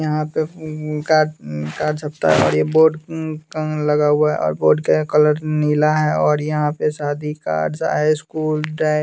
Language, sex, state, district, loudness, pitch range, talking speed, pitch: Hindi, male, Bihar, West Champaran, -18 LUFS, 150-155 Hz, 220 wpm, 150 Hz